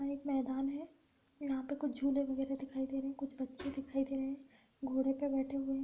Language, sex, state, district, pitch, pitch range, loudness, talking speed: Hindi, female, Uttar Pradesh, Deoria, 275 Hz, 270-280 Hz, -38 LUFS, 225 wpm